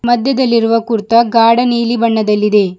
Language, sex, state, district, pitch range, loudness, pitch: Kannada, female, Karnataka, Bidar, 220-235 Hz, -12 LUFS, 230 Hz